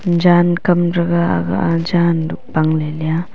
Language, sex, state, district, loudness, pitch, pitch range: Wancho, female, Arunachal Pradesh, Longding, -16 LUFS, 170 Hz, 155-175 Hz